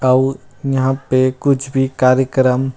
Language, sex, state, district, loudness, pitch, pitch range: Chhattisgarhi, male, Chhattisgarh, Rajnandgaon, -16 LUFS, 130 Hz, 130-135 Hz